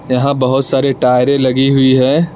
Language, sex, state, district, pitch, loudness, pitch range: Hindi, male, Arunachal Pradesh, Lower Dibang Valley, 135 Hz, -12 LUFS, 130-140 Hz